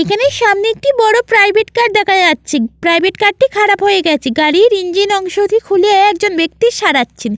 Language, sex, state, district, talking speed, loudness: Bengali, female, West Bengal, Jalpaiguri, 180 wpm, -11 LUFS